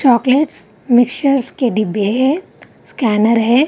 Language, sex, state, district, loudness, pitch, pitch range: Hindi, female, Bihar, Vaishali, -15 LUFS, 245 Hz, 230-275 Hz